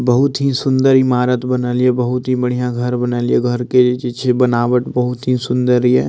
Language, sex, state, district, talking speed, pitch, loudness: Maithili, male, Bihar, Madhepura, 215 wpm, 125 Hz, -15 LUFS